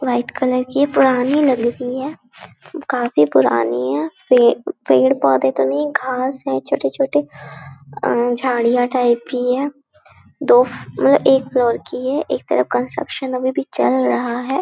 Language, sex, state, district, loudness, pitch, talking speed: Hindi, female, Chhattisgarh, Balrampur, -17 LUFS, 250 Hz, 150 wpm